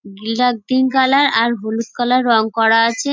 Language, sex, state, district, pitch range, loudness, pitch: Bengali, female, West Bengal, Dakshin Dinajpur, 225-255 Hz, -15 LUFS, 235 Hz